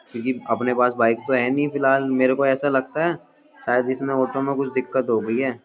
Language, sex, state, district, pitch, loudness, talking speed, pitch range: Hindi, male, Uttar Pradesh, Jyotiba Phule Nagar, 130 Hz, -21 LUFS, 235 wpm, 125-135 Hz